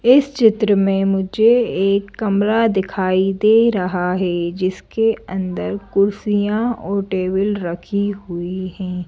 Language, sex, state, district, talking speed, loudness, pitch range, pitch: Hindi, female, Madhya Pradesh, Bhopal, 120 wpm, -18 LUFS, 185-215 Hz, 195 Hz